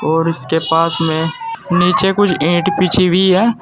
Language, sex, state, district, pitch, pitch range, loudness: Hindi, male, Uttar Pradesh, Saharanpur, 175 Hz, 160-190 Hz, -14 LUFS